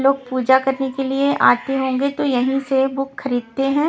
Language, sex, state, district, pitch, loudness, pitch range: Hindi, female, Punjab, Kapurthala, 270 Hz, -19 LUFS, 260-275 Hz